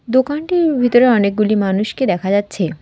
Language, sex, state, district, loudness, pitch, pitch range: Bengali, female, West Bengal, Alipurduar, -15 LUFS, 215 Hz, 200-260 Hz